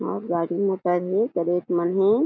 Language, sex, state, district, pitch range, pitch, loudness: Chhattisgarhi, female, Chhattisgarh, Jashpur, 175-195 Hz, 175 Hz, -23 LUFS